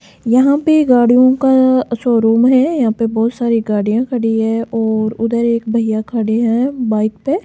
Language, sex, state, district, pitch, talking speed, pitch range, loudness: Hindi, female, Rajasthan, Jaipur, 235 Hz, 170 wpm, 225-255 Hz, -14 LUFS